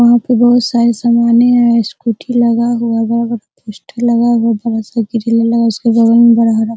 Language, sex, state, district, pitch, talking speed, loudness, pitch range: Hindi, female, Bihar, Araria, 235 Hz, 220 wpm, -12 LUFS, 230-240 Hz